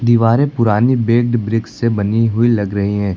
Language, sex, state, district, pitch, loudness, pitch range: Hindi, male, Uttar Pradesh, Lucknow, 115 Hz, -15 LUFS, 105-120 Hz